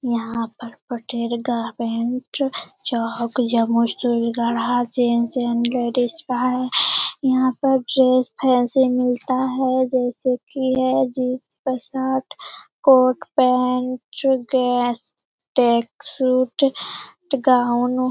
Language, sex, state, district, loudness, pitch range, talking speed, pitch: Hindi, female, Bihar, Lakhisarai, -20 LUFS, 240-260 Hz, 55 wpm, 250 Hz